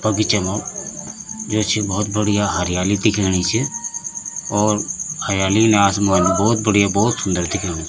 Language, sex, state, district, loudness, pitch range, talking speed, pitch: Garhwali, male, Uttarakhand, Tehri Garhwal, -18 LUFS, 95-110 Hz, 135 wpm, 105 Hz